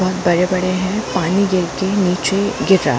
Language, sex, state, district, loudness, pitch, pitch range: Hindi, female, Chhattisgarh, Bilaspur, -17 LUFS, 185 Hz, 180-195 Hz